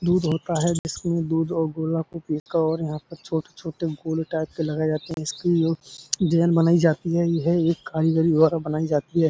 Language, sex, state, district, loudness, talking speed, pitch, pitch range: Hindi, male, Uttar Pradesh, Budaun, -23 LUFS, 200 wpm, 165 Hz, 155-170 Hz